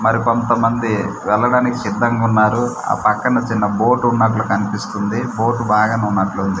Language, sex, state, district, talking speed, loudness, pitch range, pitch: Telugu, male, Andhra Pradesh, Manyam, 120 wpm, -17 LUFS, 105-120 Hz, 115 Hz